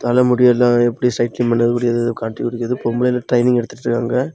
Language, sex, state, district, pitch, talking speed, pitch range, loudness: Tamil, male, Tamil Nadu, Kanyakumari, 120 Hz, 150 wpm, 120-125 Hz, -17 LUFS